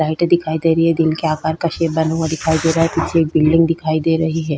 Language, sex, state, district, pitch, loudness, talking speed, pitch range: Hindi, female, Bihar, Vaishali, 160 Hz, -16 LUFS, 300 wpm, 160-165 Hz